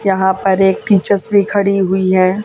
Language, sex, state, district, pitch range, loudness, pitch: Hindi, female, Haryana, Charkhi Dadri, 190-200 Hz, -13 LUFS, 195 Hz